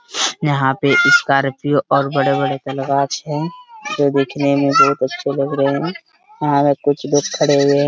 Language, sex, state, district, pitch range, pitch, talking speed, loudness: Hindi, male, Jharkhand, Sahebganj, 140-150 Hz, 140 Hz, 160 wpm, -16 LUFS